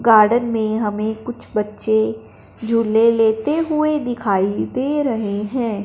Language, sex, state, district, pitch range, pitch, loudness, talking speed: Hindi, male, Punjab, Fazilka, 210-240 Hz, 220 Hz, -19 LUFS, 125 wpm